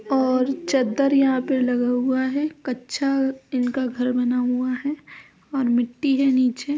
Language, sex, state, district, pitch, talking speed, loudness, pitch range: Hindi, female, Uttar Pradesh, Etah, 260 Hz, 160 wpm, -22 LUFS, 250-275 Hz